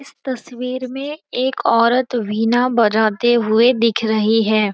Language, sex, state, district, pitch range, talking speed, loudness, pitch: Hindi, female, Bihar, Saran, 220-255 Hz, 140 wpm, -17 LUFS, 235 Hz